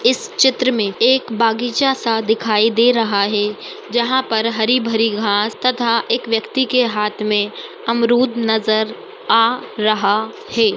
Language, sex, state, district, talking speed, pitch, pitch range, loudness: Hindi, male, Bihar, Madhepura, 145 wpm, 225 Hz, 215-245 Hz, -17 LUFS